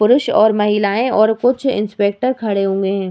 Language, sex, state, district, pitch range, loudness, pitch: Hindi, female, Bihar, Vaishali, 200-250 Hz, -15 LUFS, 215 Hz